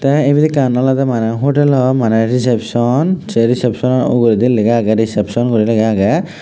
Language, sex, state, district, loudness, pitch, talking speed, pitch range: Chakma, male, Tripura, West Tripura, -13 LUFS, 120 Hz, 175 wpm, 115-130 Hz